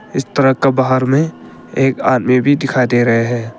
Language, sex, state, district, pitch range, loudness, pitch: Hindi, male, Arunachal Pradesh, Papum Pare, 125-135 Hz, -14 LUFS, 130 Hz